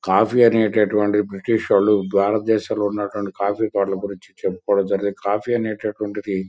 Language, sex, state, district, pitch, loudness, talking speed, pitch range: Telugu, male, Andhra Pradesh, Guntur, 105 Hz, -20 LUFS, 90 wpm, 100-110 Hz